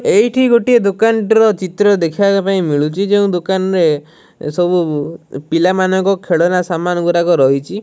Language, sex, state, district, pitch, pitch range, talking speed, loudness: Odia, male, Odisha, Malkangiri, 185 Hz, 165-205 Hz, 145 wpm, -14 LUFS